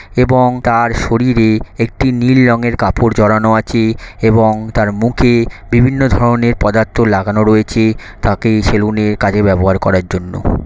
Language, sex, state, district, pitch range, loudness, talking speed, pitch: Bengali, male, West Bengal, Malda, 105-120 Hz, -12 LUFS, 105 wpm, 110 Hz